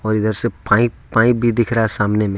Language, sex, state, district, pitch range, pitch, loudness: Hindi, male, Jharkhand, Ranchi, 105-120 Hz, 110 Hz, -17 LUFS